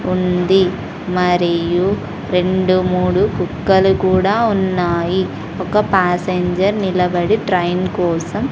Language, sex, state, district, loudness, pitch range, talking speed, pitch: Telugu, female, Andhra Pradesh, Sri Satya Sai, -16 LUFS, 180-190 Hz, 85 wpm, 185 Hz